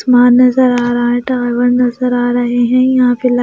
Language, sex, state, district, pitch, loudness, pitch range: Hindi, female, Bihar, Kaimur, 245 Hz, -12 LUFS, 245-250 Hz